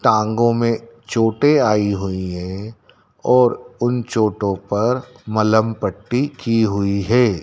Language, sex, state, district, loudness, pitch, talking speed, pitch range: Hindi, male, Madhya Pradesh, Dhar, -18 LUFS, 110 Hz, 120 wpm, 100-120 Hz